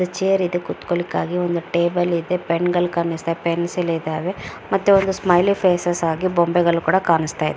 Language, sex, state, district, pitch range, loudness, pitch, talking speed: Kannada, female, Karnataka, Mysore, 170-180 Hz, -20 LUFS, 175 Hz, 150 wpm